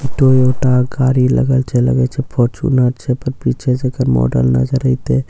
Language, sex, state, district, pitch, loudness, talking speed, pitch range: Maithili, male, Bihar, Katihar, 130 Hz, -15 LUFS, 195 wpm, 125-130 Hz